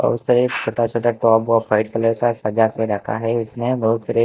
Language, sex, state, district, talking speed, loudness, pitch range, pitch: Hindi, male, Himachal Pradesh, Shimla, 225 wpm, -19 LUFS, 110-120 Hz, 115 Hz